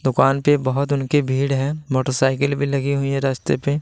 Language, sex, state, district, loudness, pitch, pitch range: Hindi, male, Bihar, West Champaran, -20 LUFS, 140 Hz, 135-140 Hz